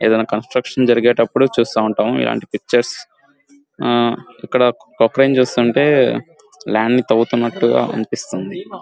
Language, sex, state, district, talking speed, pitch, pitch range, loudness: Telugu, male, Andhra Pradesh, Guntur, 95 wpm, 120 Hz, 115-130 Hz, -16 LUFS